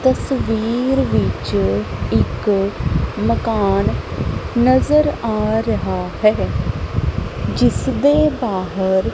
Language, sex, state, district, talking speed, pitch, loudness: Punjabi, female, Punjab, Kapurthala, 70 wpm, 185 Hz, -18 LUFS